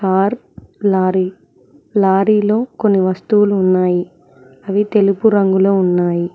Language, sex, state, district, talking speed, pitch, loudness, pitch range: Telugu, female, Telangana, Mahabubabad, 95 wpm, 195 Hz, -15 LUFS, 185-205 Hz